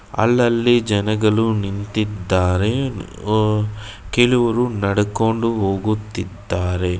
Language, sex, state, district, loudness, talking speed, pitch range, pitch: Kannada, male, Karnataka, Bangalore, -19 LUFS, 60 wpm, 100-115 Hz, 105 Hz